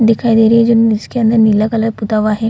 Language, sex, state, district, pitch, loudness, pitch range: Hindi, female, Bihar, Purnia, 225 Hz, -12 LUFS, 215-225 Hz